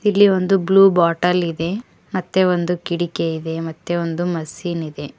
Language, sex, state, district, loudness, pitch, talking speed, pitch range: Kannada, female, Karnataka, Koppal, -19 LUFS, 175 Hz, 150 wpm, 165-185 Hz